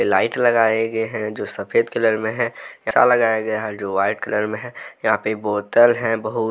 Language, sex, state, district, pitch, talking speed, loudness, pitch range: Hindi, male, Jharkhand, Deoghar, 110 Hz, 205 wpm, -20 LUFS, 105-120 Hz